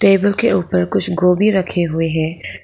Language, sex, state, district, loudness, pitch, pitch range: Hindi, female, Arunachal Pradesh, Lower Dibang Valley, -16 LUFS, 180 Hz, 160-195 Hz